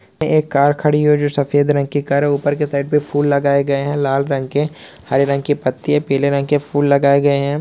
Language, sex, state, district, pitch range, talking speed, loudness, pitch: Hindi, male, Uttar Pradesh, Hamirpur, 140-145 Hz, 275 wpm, -16 LUFS, 145 Hz